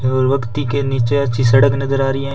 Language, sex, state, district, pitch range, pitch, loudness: Hindi, male, Rajasthan, Bikaner, 125-135 Hz, 135 Hz, -16 LUFS